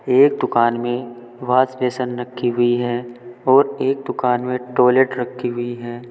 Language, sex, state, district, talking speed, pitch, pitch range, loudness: Hindi, male, Uttar Pradesh, Saharanpur, 155 wpm, 125 Hz, 120-125 Hz, -19 LUFS